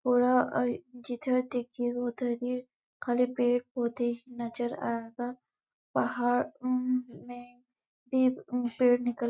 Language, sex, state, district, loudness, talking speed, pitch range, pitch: Hindi, female, Chhattisgarh, Bastar, -30 LUFS, 95 wpm, 245-250 Hz, 245 Hz